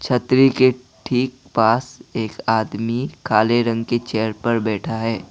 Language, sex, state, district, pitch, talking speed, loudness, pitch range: Hindi, male, Assam, Kamrup Metropolitan, 115 Hz, 145 wpm, -19 LUFS, 110-125 Hz